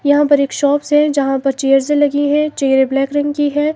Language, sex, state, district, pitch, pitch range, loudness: Hindi, female, Himachal Pradesh, Shimla, 285 Hz, 275-295 Hz, -14 LUFS